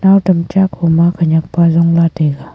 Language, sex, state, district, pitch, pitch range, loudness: Wancho, female, Arunachal Pradesh, Longding, 170 Hz, 165-180 Hz, -12 LUFS